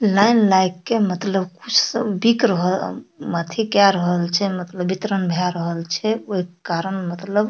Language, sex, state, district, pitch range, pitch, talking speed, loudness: Maithili, female, Bihar, Darbhanga, 180-210 Hz, 190 Hz, 175 wpm, -20 LUFS